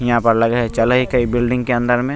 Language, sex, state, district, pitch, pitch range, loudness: Maithili, male, Bihar, Begusarai, 120 Hz, 120-125 Hz, -16 LUFS